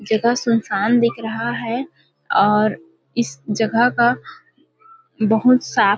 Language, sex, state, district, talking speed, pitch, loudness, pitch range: Hindi, female, Chhattisgarh, Balrampur, 120 wpm, 230 Hz, -18 LUFS, 215-245 Hz